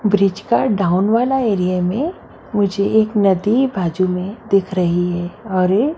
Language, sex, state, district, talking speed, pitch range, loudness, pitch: Hindi, female, Maharashtra, Mumbai Suburban, 150 wpm, 185-220 Hz, -17 LUFS, 200 Hz